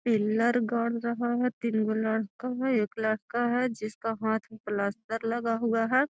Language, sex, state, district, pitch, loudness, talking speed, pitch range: Magahi, female, Bihar, Gaya, 230 Hz, -29 LUFS, 175 wpm, 220-240 Hz